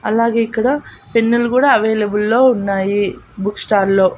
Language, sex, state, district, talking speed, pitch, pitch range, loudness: Telugu, female, Andhra Pradesh, Annamaya, 145 wpm, 220 Hz, 205-235 Hz, -15 LUFS